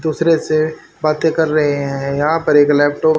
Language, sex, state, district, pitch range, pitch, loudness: Hindi, male, Haryana, Rohtak, 145-160 Hz, 155 Hz, -15 LUFS